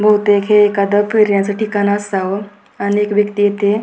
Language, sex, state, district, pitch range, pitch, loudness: Marathi, female, Maharashtra, Pune, 200-210 Hz, 205 Hz, -14 LUFS